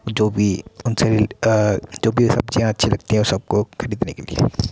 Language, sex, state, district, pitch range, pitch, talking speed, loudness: Hindi, male, Uttar Pradesh, Muzaffarnagar, 105-115 Hz, 110 Hz, 205 wpm, -19 LUFS